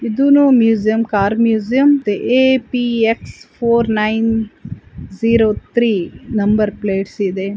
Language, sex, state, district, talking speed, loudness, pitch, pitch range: Kannada, female, Karnataka, Chamarajanagar, 95 wpm, -15 LUFS, 225 Hz, 210-235 Hz